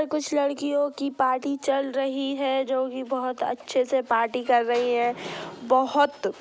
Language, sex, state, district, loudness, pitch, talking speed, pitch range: Bhojpuri, female, Bihar, Gopalganj, -25 LUFS, 265 Hz, 170 wpm, 255-280 Hz